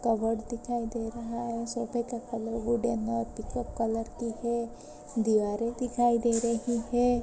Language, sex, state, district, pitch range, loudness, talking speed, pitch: Hindi, female, Uttar Pradesh, Jyotiba Phule Nagar, 230-235 Hz, -30 LUFS, 165 wpm, 235 Hz